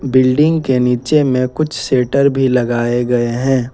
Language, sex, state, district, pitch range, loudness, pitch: Hindi, male, Jharkhand, Ranchi, 125-140 Hz, -14 LUFS, 130 Hz